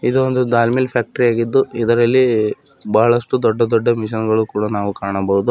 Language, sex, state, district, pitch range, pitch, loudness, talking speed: Kannada, male, Karnataka, Bidar, 110-120 Hz, 115 Hz, -16 LUFS, 165 wpm